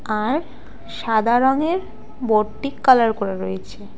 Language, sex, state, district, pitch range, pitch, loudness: Bengali, female, West Bengal, Alipurduar, 200-265 Hz, 225 Hz, -19 LUFS